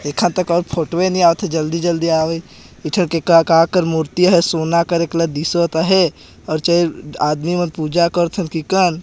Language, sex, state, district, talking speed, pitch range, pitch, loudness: Hindi, male, Chhattisgarh, Jashpur, 200 wpm, 160-175 Hz, 170 Hz, -16 LUFS